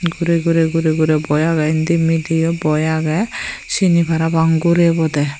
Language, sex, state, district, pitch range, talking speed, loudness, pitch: Chakma, female, Tripura, Unakoti, 155-170 Hz, 180 wpm, -16 LUFS, 165 Hz